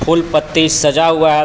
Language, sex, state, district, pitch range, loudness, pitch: Hindi, male, Jharkhand, Palamu, 155-165 Hz, -13 LUFS, 160 Hz